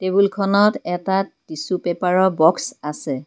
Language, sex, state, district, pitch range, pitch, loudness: Assamese, female, Assam, Kamrup Metropolitan, 170-195 Hz, 185 Hz, -19 LUFS